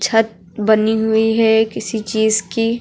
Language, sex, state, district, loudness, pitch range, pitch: Hindi, female, Uttar Pradesh, Lucknow, -16 LUFS, 215-225 Hz, 220 Hz